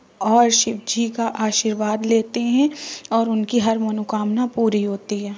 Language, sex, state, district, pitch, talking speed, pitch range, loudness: Hindi, female, Uttar Pradesh, Muzaffarnagar, 225 Hz, 155 wpm, 215-235 Hz, -20 LUFS